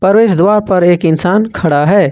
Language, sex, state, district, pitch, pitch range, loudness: Hindi, male, Jharkhand, Ranchi, 185 Hz, 170-205 Hz, -10 LUFS